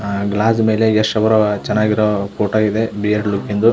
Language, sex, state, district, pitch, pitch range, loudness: Kannada, male, Karnataka, Belgaum, 105 Hz, 105-110 Hz, -16 LUFS